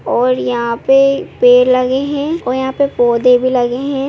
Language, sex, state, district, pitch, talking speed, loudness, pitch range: Hindi, female, Bihar, Begusarai, 255 Hz, 190 wpm, -13 LUFS, 245-275 Hz